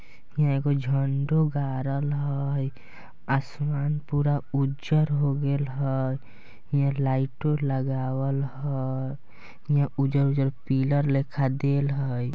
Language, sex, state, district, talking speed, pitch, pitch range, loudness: Bajjika, male, Bihar, Vaishali, 100 wpm, 140 Hz, 135-145 Hz, -26 LUFS